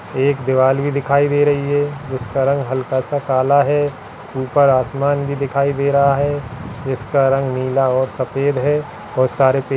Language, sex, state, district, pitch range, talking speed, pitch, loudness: Hindi, male, Uttarakhand, Tehri Garhwal, 130-140 Hz, 165 wpm, 140 Hz, -17 LUFS